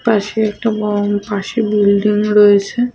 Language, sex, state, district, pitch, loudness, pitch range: Bengali, female, West Bengal, Malda, 210 Hz, -14 LUFS, 205-220 Hz